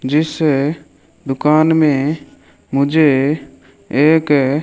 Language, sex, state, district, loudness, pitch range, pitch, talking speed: Hindi, male, Rajasthan, Bikaner, -15 LUFS, 135-155 Hz, 145 Hz, 65 wpm